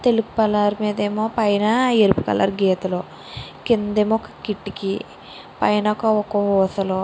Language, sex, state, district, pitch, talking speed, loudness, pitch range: Telugu, female, Andhra Pradesh, Srikakulam, 210 Hz, 110 wpm, -20 LUFS, 195-220 Hz